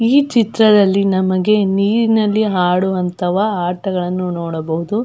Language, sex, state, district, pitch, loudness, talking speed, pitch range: Kannada, female, Karnataka, Belgaum, 195 Hz, -15 LUFS, 85 wpm, 180-215 Hz